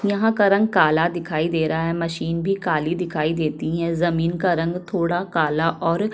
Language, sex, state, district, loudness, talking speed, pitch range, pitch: Hindi, female, Chhattisgarh, Kabirdham, -21 LUFS, 205 wpm, 165-185 Hz, 170 Hz